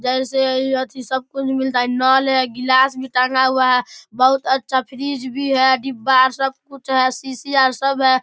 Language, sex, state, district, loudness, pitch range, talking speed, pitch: Maithili, male, Bihar, Darbhanga, -17 LUFS, 255-265 Hz, 225 wpm, 260 Hz